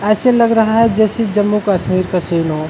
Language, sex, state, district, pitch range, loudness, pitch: Hindi, male, Uttarakhand, Uttarkashi, 185-225 Hz, -14 LUFS, 210 Hz